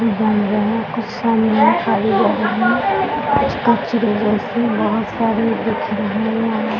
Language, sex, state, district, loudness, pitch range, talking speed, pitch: Hindi, female, Bihar, Jahanabad, -17 LUFS, 215-230 Hz, 90 wpm, 220 Hz